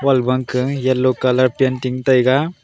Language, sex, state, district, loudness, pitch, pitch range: Wancho, male, Arunachal Pradesh, Longding, -17 LUFS, 130 Hz, 130-135 Hz